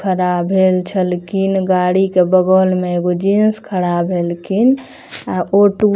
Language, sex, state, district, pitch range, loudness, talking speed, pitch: Maithili, female, Bihar, Madhepura, 180-195 Hz, -15 LUFS, 140 wpm, 185 Hz